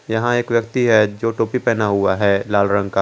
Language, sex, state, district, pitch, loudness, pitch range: Hindi, male, Jharkhand, Garhwa, 110 Hz, -17 LUFS, 100-115 Hz